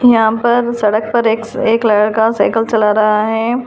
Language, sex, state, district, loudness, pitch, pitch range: Hindi, female, Delhi, New Delhi, -13 LUFS, 225 Hz, 215-235 Hz